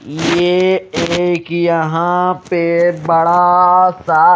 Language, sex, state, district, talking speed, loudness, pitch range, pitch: Hindi, male, Odisha, Malkangiri, 80 wpm, -13 LUFS, 170-180 Hz, 175 Hz